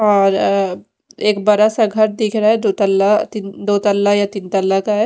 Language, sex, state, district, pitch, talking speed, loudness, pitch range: Hindi, female, Odisha, Malkangiri, 205 Hz, 225 wpm, -15 LUFS, 200-215 Hz